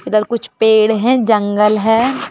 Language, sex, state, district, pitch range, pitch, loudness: Hindi, female, Madhya Pradesh, Bhopal, 215-235 Hz, 220 Hz, -13 LUFS